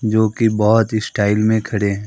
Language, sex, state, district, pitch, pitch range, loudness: Hindi, male, Bihar, Katihar, 110 Hz, 105-110 Hz, -16 LUFS